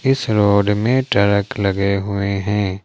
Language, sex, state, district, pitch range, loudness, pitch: Hindi, male, Jharkhand, Ranchi, 100-105 Hz, -17 LUFS, 100 Hz